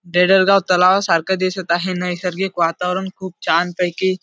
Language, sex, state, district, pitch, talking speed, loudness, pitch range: Marathi, male, Maharashtra, Dhule, 180 Hz, 155 wpm, -17 LUFS, 175-190 Hz